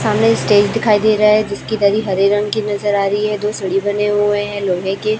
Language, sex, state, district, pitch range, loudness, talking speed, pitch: Hindi, male, Chhattisgarh, Raipur, 200-210 Hz, -15 LUFS, 255 wpm, 205 Hz